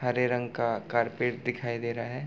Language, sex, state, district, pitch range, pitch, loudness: Hindi, male, Bihar, Gopalganj, 120-125 Hz, 120 Hz, -30 LUFS